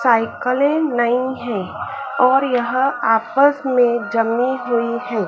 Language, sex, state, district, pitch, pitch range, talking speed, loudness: Hindi, female, Madhya Pradesh, Dhar, 245 Hz, 235-265 Hz, 115 wpm, -18 LUFS